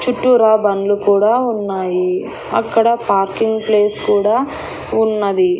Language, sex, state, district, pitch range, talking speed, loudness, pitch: Telugu, female, Andhra Pradesh, Annamaya, 195-225 Hz, 95 wpm, -15 LUFS, 210 Hz